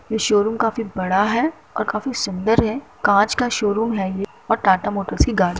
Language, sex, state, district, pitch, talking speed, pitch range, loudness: Hindi, female, Uttar Pradesh, Deoria, 215 Hz, 205 wpm, 200-230 Hz, -20 LUFS